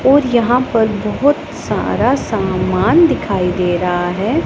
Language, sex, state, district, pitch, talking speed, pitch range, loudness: Hindi, female, Punjab, Pathankot, 225 Hz, 135 wpm, 185-280 Hz, -15 LUFS